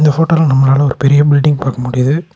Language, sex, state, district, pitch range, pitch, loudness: Tamil, male, Tamil Nadu, Nilgiris, 135-150 Hz, 145 Hz, -11 LUFS